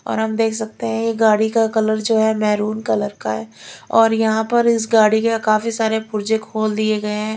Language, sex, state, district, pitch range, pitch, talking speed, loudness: Hindi, female, Chhattisgarh, Raipur, 215-225 Hz, 220 Hz, 230 wpm, -18 LUFS